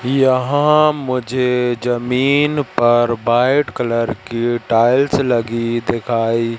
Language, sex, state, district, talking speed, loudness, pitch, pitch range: Hindi, male, Madhya Pradesh, Katni, 90 wpm, -16 LUFS, 120 Hz, 115-135 Hz